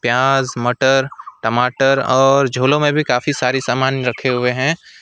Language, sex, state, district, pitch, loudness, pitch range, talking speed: Hindi, male, West Bengal, Alipurduar, 130 Hz, -16 LUFS, 125-135 Hz, 155 wpm